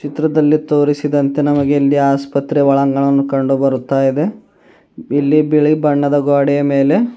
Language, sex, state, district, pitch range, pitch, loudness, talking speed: Kannada, male, Karnataka, Bidar, 140-150 Hz, 145 Hz, -14 LUFS, 100 wpm